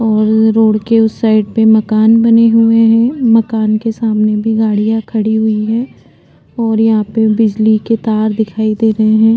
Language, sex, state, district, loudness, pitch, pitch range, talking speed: Hindi, female, Uttarakhand, Tehri Garhwal, -11 LUFS, 220 Hz, 215-225 Hz, 185 wpm